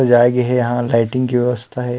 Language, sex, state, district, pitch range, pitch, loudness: Chhattisgarhi, male, Chhattisgarh, Rajnandgaon, 120-125 Hz, 125 Hz, -16 LUFS